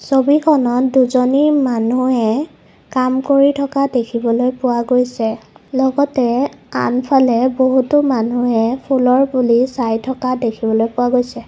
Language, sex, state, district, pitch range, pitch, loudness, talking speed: Assamese, female, Assam, Kamrup Metropolitan, 240-265 Hz, 255 Hz, -15 LUFS, 105 wpm